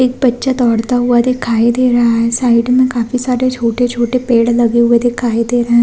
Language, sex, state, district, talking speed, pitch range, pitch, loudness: Hindi, female, Chhattisgarh, Korba, 205 wpm, 235-250 Hz, 240 Hz, -13 LUFS